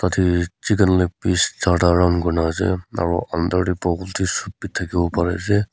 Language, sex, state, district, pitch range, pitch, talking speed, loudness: Nagamese, female, Nagaland, Kohima, 85-95 Hz, 90 Hz, 210 wpm, -20 LUFS